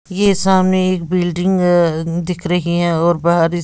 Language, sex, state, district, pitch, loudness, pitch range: Hindi, female, Bihar, West Champaran, 175 Hz, -15 LUFS, 170-185 Hz